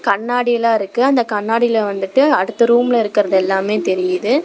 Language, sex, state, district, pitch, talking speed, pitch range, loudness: Tamil, female, Tamil Nadu, Namakkal, 225 Hz, 120 wpm, 200-240 Hz, -16 LUFS